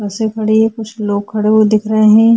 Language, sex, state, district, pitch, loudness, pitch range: Hindi, female, Bihar, Vaishali, 215 Hz, -13 LUFS, 210-220 Hz